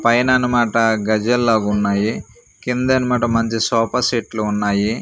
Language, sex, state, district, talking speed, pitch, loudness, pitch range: Telugu, male, Andhra Pradesh, Manyam, 110 wpm, 115 Hz, -17 LUFS, 110-125 Hz